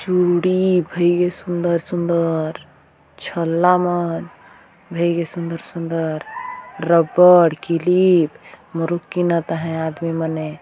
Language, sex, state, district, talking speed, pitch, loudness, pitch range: Hindi, male, Chhattisgarh, Jashpur, 105 wpm, 170 Hz, -18 LUFS, 165-180 Hz